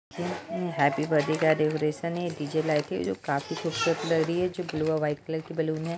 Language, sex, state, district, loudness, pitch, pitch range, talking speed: Hindi, female, Bihar, Purnia, -28 LUFS, 160 Hz, 155-170 Hz, 230 wpm